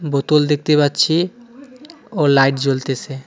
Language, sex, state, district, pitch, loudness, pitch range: Bengali, male, West Bengal, Cooch Behar, 150 Hz, -16 LUFS, 135-190 Hz